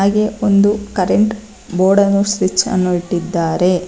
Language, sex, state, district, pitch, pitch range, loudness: Kannada, female, Karnataka, Bangalore, 195 Hz, 180-205 Hz, -15 LUFS